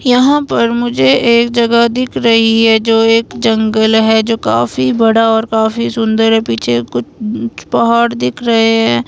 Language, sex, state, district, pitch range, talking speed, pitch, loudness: Hindi, female, Himachal Pradesh, Shimla, 220-235 Hz, 165 wpm, 225 Hz, -11 LUFS